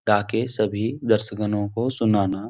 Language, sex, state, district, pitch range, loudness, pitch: Hindi, male, Bihar, Jahanabad, 105-115 Hz, -23 LUFS, 105 Hz